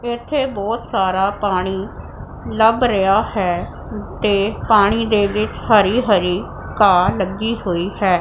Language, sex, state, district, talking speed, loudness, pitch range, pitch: Punjabi, female, Punjab, Pathankot, 125 wpm, -17 LUFS, 190-220 Hz, 200 Hz